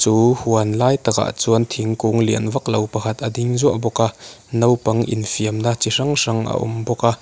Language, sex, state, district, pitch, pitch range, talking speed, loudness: Mizo, male, Mizoram, Aizawl, 115 Hz, 110-120 Hz, 200 wpm, -19 LUFS